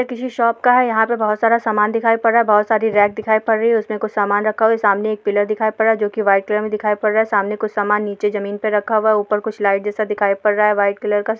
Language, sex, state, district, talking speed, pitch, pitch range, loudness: Hindi, female, Bihar, Bhagalpur, 310 wpm, 215 Hz, 205-220 Hz, -17 LUFS